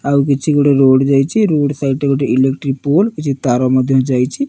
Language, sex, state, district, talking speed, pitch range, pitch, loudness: Odia, male, Odisha, Nuapada, 200 wpm, 135-145 Hz, 140 Hz, -14 LUFS